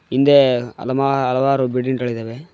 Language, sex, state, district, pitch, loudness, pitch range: Kannada, male, Karnataka, Koppal, 130 Hz, -17 LUFS, 125-135 Hz